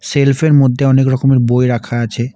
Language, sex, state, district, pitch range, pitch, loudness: Bengali, male, West Bengal, Alipurduar, 120-140 Hz, 130 Hz, -12 LUFS